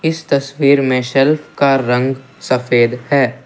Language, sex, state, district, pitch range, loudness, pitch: Hindi, male, Assam, Kamrup Metropolitan, 125-140 Hz, -15 LUFS, 135 Hz